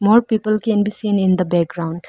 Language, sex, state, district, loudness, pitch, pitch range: English, female, Arunachal Pradesh, Lower Dibang Valley, -18 LUFS, 205 Hz, 180-215 Hz